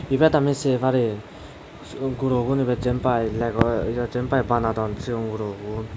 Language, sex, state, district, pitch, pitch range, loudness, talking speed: Chakma, male, Tripura, Dhalai, 120 Hz, 115-130 Hz, -23 LUFS, 140 wpm